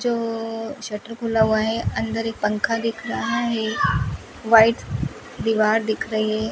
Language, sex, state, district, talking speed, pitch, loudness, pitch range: Hindi, female, Rajasthan, Bikaner, 145 wpm, 225 Hz, -22 LUFS, 220-230 Hz